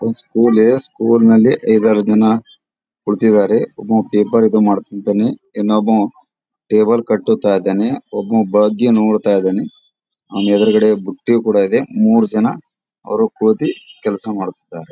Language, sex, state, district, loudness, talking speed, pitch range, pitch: Kannada, male, Karnataka, Gulbarga, -14 LUFS, 125 wpm, 105-115 Hz, 110 Hz